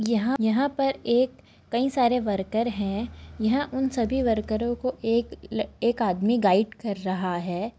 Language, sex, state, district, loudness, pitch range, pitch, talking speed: Hindi, female, Chhattisgarh, Korba, -25 LUFS, 210-250 Hz, 230 Hz, 155 wpm